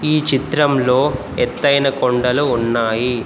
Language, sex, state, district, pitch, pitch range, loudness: Telugu, male, Telangana, Komaram Bheem, 130 Hz, 125-145 Hz, -16 LUFS